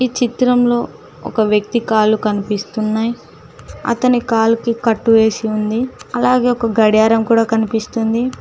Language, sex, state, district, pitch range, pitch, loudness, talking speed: Telugu, female, Telangana, Mahabubabad, 220-240 Hz, 225 Hz, -15 LUFS, 105 wpm